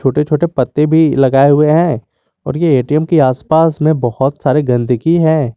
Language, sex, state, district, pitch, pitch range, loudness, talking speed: Hindi, male, Jharkhand, Garhwa, 150 Hz, 130-160 Hz, -12 LUFS, 185 wpm